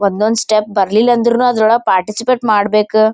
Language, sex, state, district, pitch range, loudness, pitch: Kannada, female, Karnataka, Gulbarga, 210-235 Hz, -13 LUFS, 215 Hz